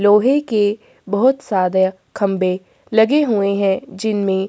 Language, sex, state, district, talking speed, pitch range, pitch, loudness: Hindi, female, Chhattisgarh, Korba, 135 wpm, 190-220 Hz, 205 Hz, -17 LUFS